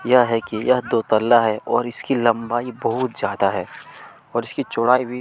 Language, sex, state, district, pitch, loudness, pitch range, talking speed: Hindi, male, Chhattisgarh, Kabirdham, 120 Hz, -20 LUFS, 115-125 Hz, 195 wpm